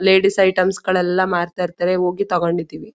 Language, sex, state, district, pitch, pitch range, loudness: Kannada, female, Karnataka, Mysore, 185 Hz, 175-190 Hz, -18 LUFS